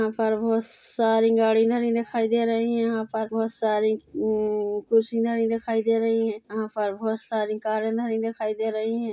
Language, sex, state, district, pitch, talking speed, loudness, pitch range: Hindi, female, Chhattisgarh, Korba, 225 Hz, 195 wpm, -24 LUFS, 220-230 Hz